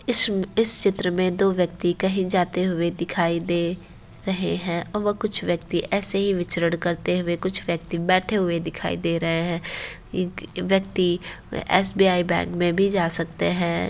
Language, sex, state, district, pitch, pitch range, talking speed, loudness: Hindi, female, Uttar Pradesh, Varanasi, 180 Hz, 170-195 Hz, 165 wpm, -22 LUFS